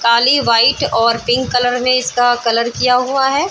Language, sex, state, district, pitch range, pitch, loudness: Hindi, female, Chhattisgarh, Bilaspur, 235-255 Hz, 245 Hz, -13 LUFS